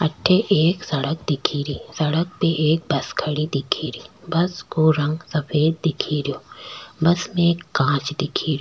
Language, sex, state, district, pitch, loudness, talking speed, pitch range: Rajasthani, female, Rajasthan, Churu, 155 Hz, -21 LUFS, 160 wpm, 150-170 Hz